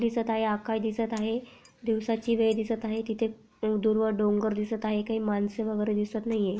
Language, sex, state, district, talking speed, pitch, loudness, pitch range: Marathi, female, Maharashtra, Pune, 170 wpm, 220 Hz, -29 LUFS, 215-225 Hz